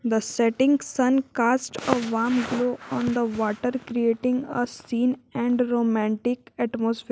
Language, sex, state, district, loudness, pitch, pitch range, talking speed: English, female, Jharkhand, Garhwa, -24 LUFS, 240 Hz, 230-250 Hz, 135 wpm